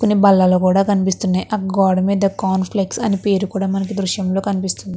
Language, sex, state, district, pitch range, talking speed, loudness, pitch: Telugu, female, Andhra Pradesh, Krishna, 190-200 Hz, 155 wpm, -17 LUFS, 195 Hz